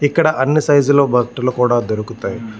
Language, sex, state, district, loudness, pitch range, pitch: Telugu, male, Andhra Pradesh, Visakhapatnam, -15 LUFS, 115-145 Hz, 125 Hz